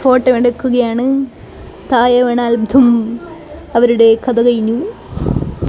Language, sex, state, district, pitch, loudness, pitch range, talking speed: Malayalam, female, Kerala, Kozhikode, 245 Hz, -13 LUFS, 235-255 Hz, 85 wpm